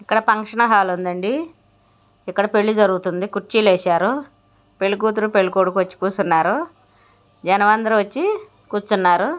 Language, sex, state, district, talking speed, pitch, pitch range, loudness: Telugu, female, Andhra Pradesh, Guntur, 100 wpm, 200 Hz, 185-220 Hz, -19 LUFS